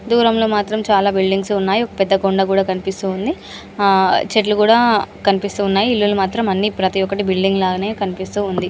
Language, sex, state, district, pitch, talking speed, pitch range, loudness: Telugu, female, Andhra Pradesh, Anantapur, 200 Hz, 160 wpm, 190-210 Hz, -16 LUFS